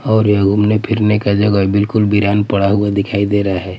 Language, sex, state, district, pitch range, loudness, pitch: Hindi, male, Bihar, Patna, 100-105 Hz, -14 LUFS, 105 Hz